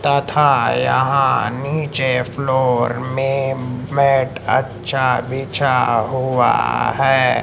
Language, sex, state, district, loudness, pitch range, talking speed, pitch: Hindi, male, Madhya Pradesh, Umaria, -17 LUFS, 125-135 Hz, 80 wpm, 130 Hz